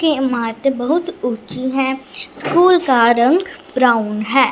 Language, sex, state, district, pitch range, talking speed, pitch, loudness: Hindi, female, Punjab, Fazilka, 240-320 Hz, 135 wpm, 265 Hz, -16 LUFS